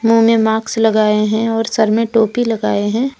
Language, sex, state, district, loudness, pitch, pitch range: Hindi, female, Jharkhand, Deoghar, -15 LUFS, 225 Hz, 215-230 Hz